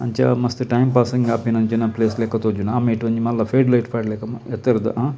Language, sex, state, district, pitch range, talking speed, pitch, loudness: Tulu, male, Karnataka, Dakshina Kannada, 115-125 Hz, 195 wpm, 115 Hz, -19 LUFS